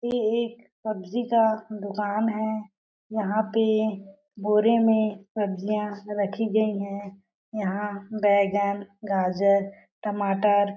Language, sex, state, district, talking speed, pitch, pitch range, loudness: Hindi, female, Chhattisgarh, Balrampur, 100 wpm, 210 Hz, 200-220 Hz, -25 LUFS